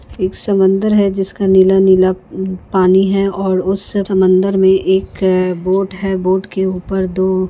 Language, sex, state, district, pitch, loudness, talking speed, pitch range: Hindi, female, Maharashtra, Nagpur, 190 Hz, -14 LUFS, 135 wpm, 185-195 Hz